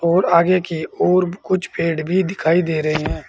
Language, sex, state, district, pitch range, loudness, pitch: Hindi, male, Uttar Pradesh, Saharanpur, 160-185 Hz, -18 LUFS, 170 Hz